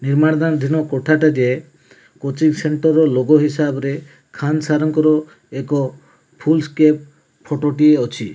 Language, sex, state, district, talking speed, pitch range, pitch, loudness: Odia, male, Odisha, Malkangiri, 145 wpm, 140-155 Hz, 150 Hz, -17 LUFS